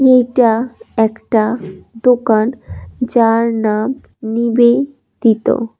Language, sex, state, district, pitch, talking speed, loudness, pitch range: Bengali, female, Tripura, West Tripura, 235 Hz, 60 wpm, -15 LUFS, 220-250 Hz